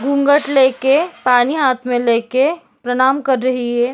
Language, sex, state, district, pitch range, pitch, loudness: Hindi, female, Goa, North and South Goa, 245-280 Hz, 260 Hz, -15 LUFS